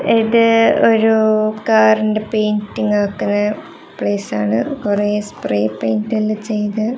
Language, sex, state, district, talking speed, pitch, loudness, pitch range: Malayalam, female, Kerala, Kasaragod, 105 wpm, 215 Hz, -16 LUFS, 205-220 Hz